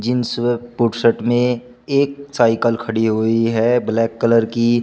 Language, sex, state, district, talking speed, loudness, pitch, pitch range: Hindi, male, Uttar Pradesh, Shamli, 160 wpm, -17 LUFS, 115 Hz, 115-120 Hz